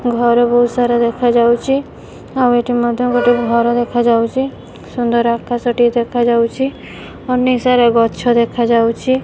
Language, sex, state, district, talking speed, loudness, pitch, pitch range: Odia, female, Odisha, Malkangiri, 110 wpm, -14 LUFS, 240 Hz, 235-245 Hz